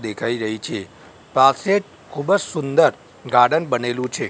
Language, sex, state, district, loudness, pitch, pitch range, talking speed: Gujarati, male, Gujarat, Gandhinagar, -19 LUFS, 125 Hz, 115-135 Hz, 125 wpm